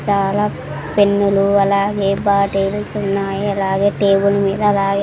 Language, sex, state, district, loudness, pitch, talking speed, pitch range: Telugu, female, Andhra Pradesh, Sri Satya Sai, -16 LUFS, 200 Hz, 120 wpm, 195-200 Hz